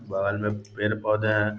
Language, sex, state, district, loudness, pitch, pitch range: Hindi, male, Bihar, Gaya, -26 LUFS, 105 Hz, 105-110 Hz